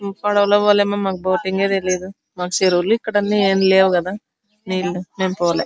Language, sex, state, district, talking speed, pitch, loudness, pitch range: Telugu, female, Andhra Pradesh, Anantapur, 150 wpm, 190 Hz, -18 LUFS, 185-205 Hz